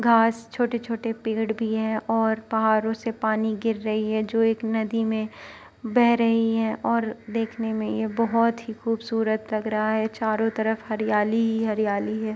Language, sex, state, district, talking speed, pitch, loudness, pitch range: Hindi, female, Uttar Pradesh, Etah, 175 wpm, 225 Hz, -24 LUFS, 220-225 Hz